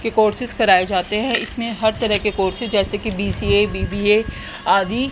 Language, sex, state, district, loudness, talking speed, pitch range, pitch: Hindi, female, Haryana, Jhajjar, -19 LUFS, 175 wpm, 190-230 Hz, 210 Hz